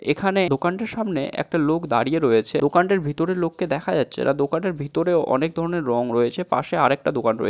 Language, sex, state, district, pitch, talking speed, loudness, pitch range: Bengali, male, West Bengal, Jalpaiguri, 165 Hz, 185 wpm, -22 LUFS, 140-175 Hz